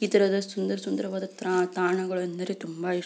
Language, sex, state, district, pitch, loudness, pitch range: Kannada, female, Karnataka, Belgaum, 185 Hz, -28 LUFS, 180-195 Hz